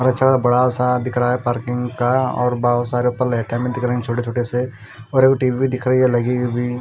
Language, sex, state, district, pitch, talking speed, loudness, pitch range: Hindi, male, Punjab, Kapurthala, 125 Hz, 240 wpm, -18 LUFS, 120-125 Hz